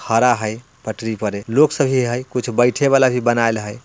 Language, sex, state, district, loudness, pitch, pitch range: Bhojpuri, male, Bihar, Muzaffarpur, -18 LUFS, 120 Hz, 110-130 Hz